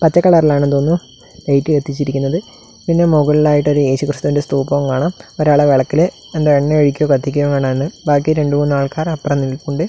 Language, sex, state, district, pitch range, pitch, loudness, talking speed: Malayalam, male, Kerala, Kasaragod, 140-155 Hz, 145 Hz, -15 LUFS, 140 wpm